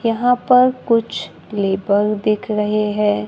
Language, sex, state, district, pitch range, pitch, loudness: Hindi, female, Maharashtra, Gondia, 205-235 Hz, 215 Hz, -17 LUFS